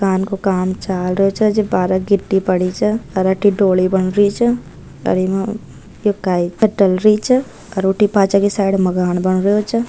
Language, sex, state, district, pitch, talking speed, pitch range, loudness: Marwari, female, Rajasthan, Nagaur, 195 Hz, 135 wpm, 185-210 Hz, -16 LUFS